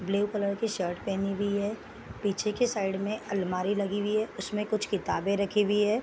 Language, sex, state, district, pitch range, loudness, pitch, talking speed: Hindi, female, Bihar, Gopalganj, 195-210 Hz, -30 LUFS, 205 Hz, 220 wpm